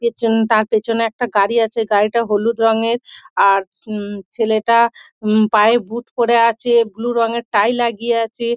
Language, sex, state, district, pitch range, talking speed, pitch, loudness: Bengali, female, West Bengal, Dakshin Dinajpur, 215-235 Hz, 155 wpm, 230 Hz, -16 LUFS